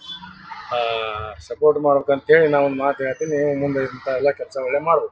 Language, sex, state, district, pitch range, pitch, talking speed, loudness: Kannada, male, Karnataka, Bijapur, 130-150 Hz, 140 Hz, 165 wpm, -20 LUFS